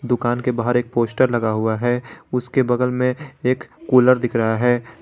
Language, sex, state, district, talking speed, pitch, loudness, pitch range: Hindi, male, Jharkhand, Garhwa, 190 wpm, 125 Hz, -19 LUFS, 120-125 Hz